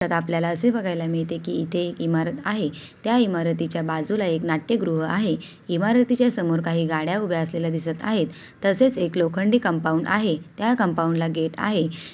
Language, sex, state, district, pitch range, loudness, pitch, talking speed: Marathi, female, Maharashtra, Sindhudurg, 165-205 Hz, -23 LUFS, 170 Hz, 165 wpm